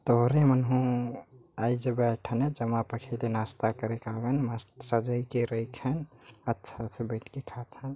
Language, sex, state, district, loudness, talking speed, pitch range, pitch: Chhattisgarhi, male, Chhattisgarh, Jashpur, -30 LUFS, 165 wpm, 115-130 Hz, 120 Hz